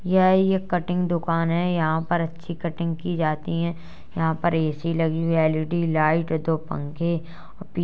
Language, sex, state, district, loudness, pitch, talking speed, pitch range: Hindi, female, Uttar Pradesh, Jalaun, -24 LUFS, 165 Hz, 170 wpm, 160-175 Hz